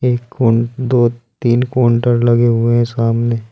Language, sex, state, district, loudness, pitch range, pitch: Hindi, male, Uttar Pradesh, Saharanpur, -14 LUFS, 115-120 Hz, 120 Hz